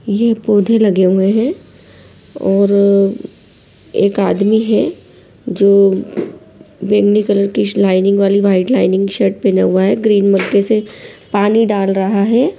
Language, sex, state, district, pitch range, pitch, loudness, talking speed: Hindi, female, Bihar, Saran, 195-215 Hz, 200 Hz, -13 LUFS, 135 wpm